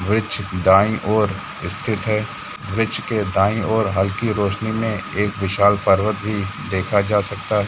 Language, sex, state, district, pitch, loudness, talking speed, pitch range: Hindi, male, Jharkhand, Jamtara, 105 Hz, -20 LUFS, 155 wpm, 95-110 Hz